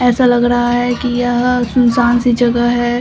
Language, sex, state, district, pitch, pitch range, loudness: Hindi, female, Bihar, Samastipur, 245 Hz, 240-245 Hz, -13 LUFS